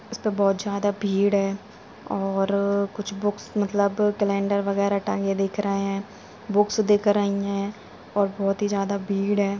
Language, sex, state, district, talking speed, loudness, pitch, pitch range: Hindi, female, Uttarakhand, Tehri Garhwal, 155 wpm, -24 LUFS, 200 Hz, 200-205 Hz